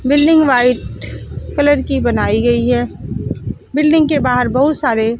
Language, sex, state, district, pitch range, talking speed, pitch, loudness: Hindi, female, Chandigarh, Chandigarh, 240-290 Hz, 140 wpm, 260 Hz, -14 LUFS